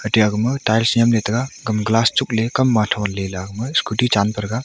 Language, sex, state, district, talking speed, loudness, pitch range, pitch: Wancho, male, Arunachal Pradesh, Longding, 165 wpm, -18 LUFS, 105-115 Hz, 110 Hz